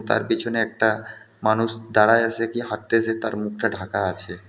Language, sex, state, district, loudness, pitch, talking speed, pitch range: Bengali, male, West Bengal, Alipurduar, -22 LUFS, 110 Hz, 160 wpm, 105-115 Hz